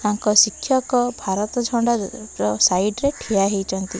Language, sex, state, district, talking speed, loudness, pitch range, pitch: Odia, female, Odisha, Malkangiri, 120 wpm, -20 LUFS, 195-245 Hz, 210 Hz